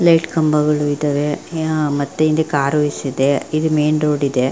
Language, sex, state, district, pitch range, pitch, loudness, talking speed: Kannada, female, Karnataka, Belgaum, 145-155 Hz, 150 Hz, -17 LUFS, 130 wpm